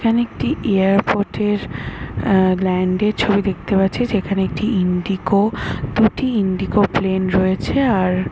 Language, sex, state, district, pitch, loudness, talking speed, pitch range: Bengali, male, West Bengal, North 24 Parganas, 195 Hz, -18 LUFS, 135 wpm, 190-210 Hz